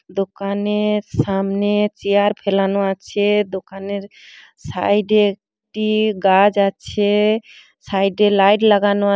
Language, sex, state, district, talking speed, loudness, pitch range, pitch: Bengali, female, West Bengal, Paschim Medinipur, 100 wpm, -17 LUFS, 195-210 Hz, 200 Hz